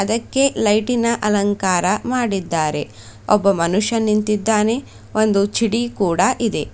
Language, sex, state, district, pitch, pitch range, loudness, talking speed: Kannada, female, Karnataka, Bidar, 210 Hz, 190-230 Hz, -18 LUFS, 100 wpm